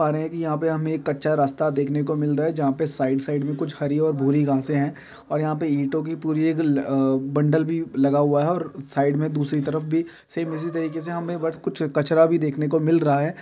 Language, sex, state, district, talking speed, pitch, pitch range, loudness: Hindi, male, Chhattisgarh, Balrampur, 275 wpm, 155 Hz, 145-160 Hz, -23 LUFS